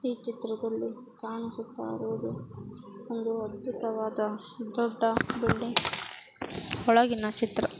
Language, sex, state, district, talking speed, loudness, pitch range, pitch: Kannada, female, Karnataka, Mysore, 75 wpm, -31 LUFS, 215-235 Hz, 225 Hz